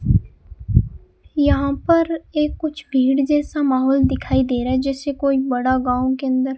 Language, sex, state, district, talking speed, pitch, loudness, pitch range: Hindi, male, Rajasthan, Bikaner, 155 wpm, 275 Hz, -19 LUFS, 260-295 Hz